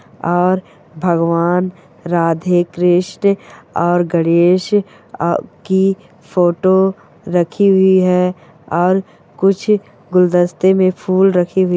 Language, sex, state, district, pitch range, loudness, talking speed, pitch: Hindi, female, Chhattisgarh, Bilaspur, 175-190 Hz, -15 LUFS, 95 wpm, 180 Hz